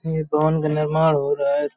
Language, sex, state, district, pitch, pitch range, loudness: Hindi, male, Uttar Pradesh, Hamirpur, 155 Hz, 145-160 Hz, -20 LUFS